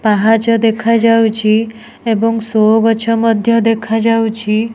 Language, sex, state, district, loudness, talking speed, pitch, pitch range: Odia, female, Odisha, Nuapada, -13 LUFS, 100 wpm, 225 Hz, 220-230 Hz